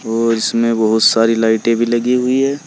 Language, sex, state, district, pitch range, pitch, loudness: Hindi, male, Uttar Pradesh, Saharanpur, 115-125 Hz, 115 Hz, -14 LUFS